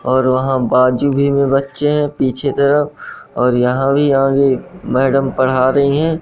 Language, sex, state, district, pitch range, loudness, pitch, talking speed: Hindi, male, Madhya Pradesh, Katni, 130-140 Hz, -14 LUFS, 135 Hz, 165 wpm